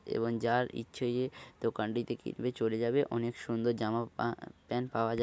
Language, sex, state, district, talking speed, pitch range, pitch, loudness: Bengali, male, West Bengal, Paschim Medinipur, 150 wpm, 115-125 Hz, 120 Hz, -34 LUFS